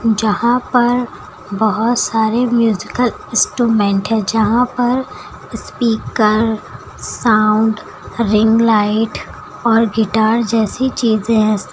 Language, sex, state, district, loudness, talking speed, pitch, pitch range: Hindi, female, Uttar Pradesh, Lucknow, -15 LUFS, 90 wpm, 225 Hz, 215-240 Hz